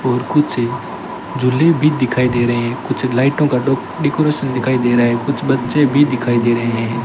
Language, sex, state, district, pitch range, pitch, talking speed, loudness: Hindi, male, Rajasthan, Bikaner, 120-140 Hz, 125 Hz, 205 wpm, -16 LUFS